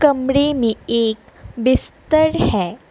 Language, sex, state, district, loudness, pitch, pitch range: Hindi, female, Assam, Kamrup Metropolitan, -18 LUFS, 260 Hz, 230-295 Hz